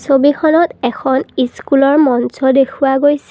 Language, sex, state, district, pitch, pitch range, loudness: Assamese, female, Assam, Kamrup Metropolitan, 275 Hz, 265-290 Hz, -13 LUFS